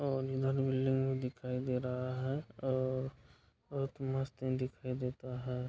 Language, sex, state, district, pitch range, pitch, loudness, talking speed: Hindi, male, Bihar, Madhepura, 125-135 Hz, 130 Hz, -37 LUFS, 145 wpm